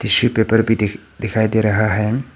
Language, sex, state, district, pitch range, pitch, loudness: Hindi, male, Arunachal Pradesh, Papum Pare, 105-115 Hz, 110 Hz, -17 LUFS